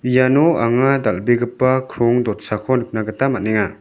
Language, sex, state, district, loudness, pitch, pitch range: Garo, male, Meghalaya, West Garo Hills, -17 LUFS, 120 Hz, 110-130 Hz